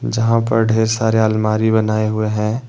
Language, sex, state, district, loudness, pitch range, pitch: Hindi, male, Jharkhand, Deoghar, -16 LUFS, 110-115 Hz, 110 Hz